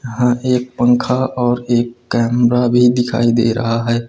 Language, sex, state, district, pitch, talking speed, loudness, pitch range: Hindi, male, Uttar Pradesh, Lucknow, 120 Hz, 160 wpm, -15 LUFS, 120-125 Hz